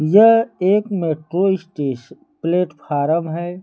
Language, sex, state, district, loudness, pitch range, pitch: Hindi, male, Uttar Pradesh, Lucknow, -18 LUFS, 155-190 Hz, 175 Hz